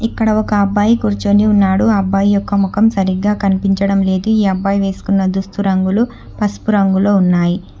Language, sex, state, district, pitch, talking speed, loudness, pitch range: Telugu, female, Telangana, Hyderabad, 200 Hz, 155 wpm, -14 LUFS, 195-210 Hz